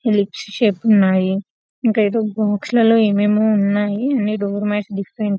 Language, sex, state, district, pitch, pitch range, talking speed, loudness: Telugu, female, Telangana, Karimnagar, 210 Hz, 200-220 Hz, 165 wpm, -17 LUFS